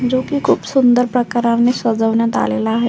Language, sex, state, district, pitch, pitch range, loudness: Marathi, female, Maharashtra, Solapur, 240 Hz, 230-250 Hz, -15 LUFS